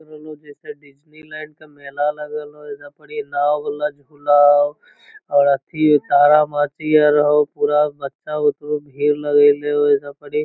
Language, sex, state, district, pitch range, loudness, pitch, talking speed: Magahi, male, Bihar, Lakhisarai, 145-155 Hz, -17 LUFS, 150 Hz, 170 wpm